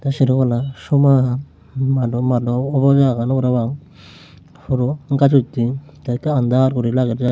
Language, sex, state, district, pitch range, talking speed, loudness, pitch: Chakma, male, Tripura, Unakoti, 125-140 Hz, 140 wpm, -17 LUFS, 130 Hz